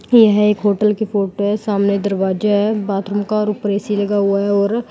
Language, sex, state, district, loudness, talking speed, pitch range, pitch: Hindi, female, Uttar Pradesh, Lalitpur, -16 LUFS, 210 wpm, 200-210 Hz, 205 Hz